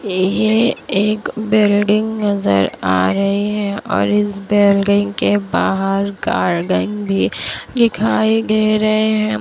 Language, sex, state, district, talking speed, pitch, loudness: Hindi, female, Bihar, Kishanganj, 115 wpm, 200 Hz, -16 LUFS